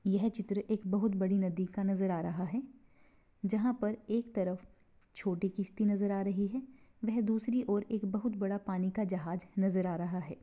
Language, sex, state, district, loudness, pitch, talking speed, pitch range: Hindi, female, Maharashtra, Pune, -34 LUFS, 200 Hz, 195 wpm, 185-220 Hz